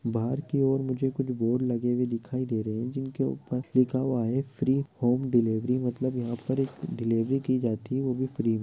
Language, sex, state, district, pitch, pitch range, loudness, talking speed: Hindi, male, Andhra Pradesh, Chittoor, 125 Hz, 115-130 Hz, -28 LUFS, 210 wpm